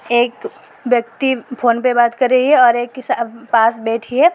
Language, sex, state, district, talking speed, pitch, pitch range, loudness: Hindi, female, Uttar Pradesh, Lalitpur, 205 wpm, 245 Hz, 235-260 Hz, -15 LUFS